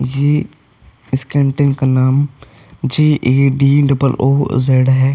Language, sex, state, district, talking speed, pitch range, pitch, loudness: Hindi, male, Uttar Pradesh, Hamirpur, 140 wpm, 130-140 Hz, 135 Hz, -14 LUFS